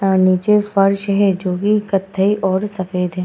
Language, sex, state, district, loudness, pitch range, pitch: Hindi, female, Uttar Pradesh, Hamirpur, -16 LUFS, 185-200 Hz, 195 Hz